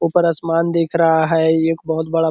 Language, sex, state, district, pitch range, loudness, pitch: Hindi, male, Bihar, Purnia, 160-170 Hz, -17 LUFS, 165 Hz